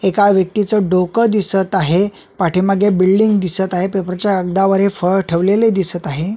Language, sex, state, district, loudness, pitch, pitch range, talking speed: Marathi, male, Maharashtra, Solapur, -15 LUFS, 195 Hz, 185-200 Hz, 160 wpm